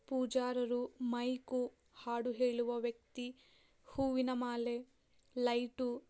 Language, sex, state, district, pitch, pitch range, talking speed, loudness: Kannada, female, Karnataka, Dharwad, 245 Hz, 240-255 Hz, 90 wpm, -38 LUFS